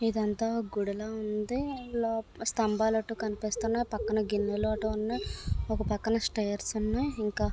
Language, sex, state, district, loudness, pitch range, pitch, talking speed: Telugu, female, Andhra Pradesh, Visakhapatnam, -31 LUFS, 210-225 Hz, 220 Hz, 130 wpm